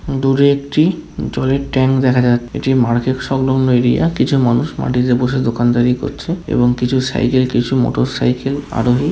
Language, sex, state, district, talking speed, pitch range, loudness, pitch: Bengali, male, West Bengal, Paschim Medinipur, 150 wpm, 125-140 Hz, -15 LUFS, 130 Hz